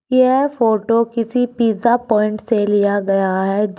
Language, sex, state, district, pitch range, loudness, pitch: Hindi, female, Uttar Pradesh, Shamli, 205-245 Hz, -16 LUFS, 225 Hz